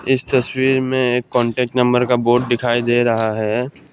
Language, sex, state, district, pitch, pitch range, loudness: Hindi, male, Assam, Kamrup Metropolitan, 125 Hz, 120-130 Hz, -17 LUFS